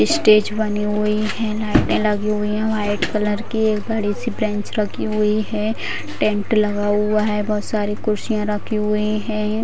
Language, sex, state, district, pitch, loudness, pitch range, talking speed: Hindi, female, Bihar, Vaishali, 210 Hz, -20 LUFS, 210-215 Hz, 160 wpm